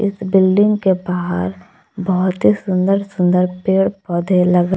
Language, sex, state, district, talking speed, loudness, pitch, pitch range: Hindi, female, Jharkhand, Palamu, 125 wpm, -16 LUFS, 185 Hz, 180-195 Hz